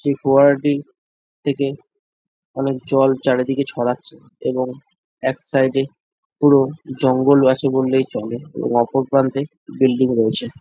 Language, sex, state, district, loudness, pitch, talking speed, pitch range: Bengali, male, West Bengal, Jalpaiguri, -18 LUFS, 135 Hz, 125 wpm, 130-140 Hz